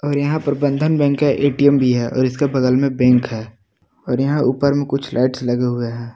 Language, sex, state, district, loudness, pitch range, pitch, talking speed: Hindi, male, Jharkhand, Palamu, -17 LUFS, 125-140 Hz, 130 Hz, 235 wpm